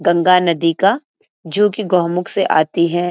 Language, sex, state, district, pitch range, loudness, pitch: Hindi, female, Uttarakhand, Uttarkashi, 170-200 Hz, -16 LUFS, 180 Hz